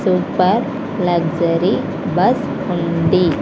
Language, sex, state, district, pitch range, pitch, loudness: Telugu, female, Andhra Pradesh, Sri Satya Sai, 170-185 Hz, 175 Hz, -17 LUFS